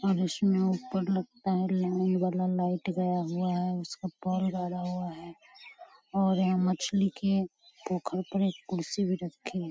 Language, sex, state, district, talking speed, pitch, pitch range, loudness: Hindi, female, Bihar, Lakhisarai, 165 wpm, 185 Hz, 180-190 Hz, -30 LUFS